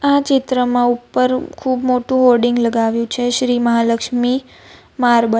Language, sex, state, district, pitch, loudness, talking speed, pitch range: Gujarati, female, Gujarat, Valsad, 245 Hz, -16 LUFS, 135 wpm, 235-255 Hz